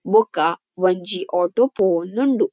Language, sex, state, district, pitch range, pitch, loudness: Tulu, female, Karnataka, Dakshina Kannada, 180-230 Hz, 185 Hz, -20 LUFS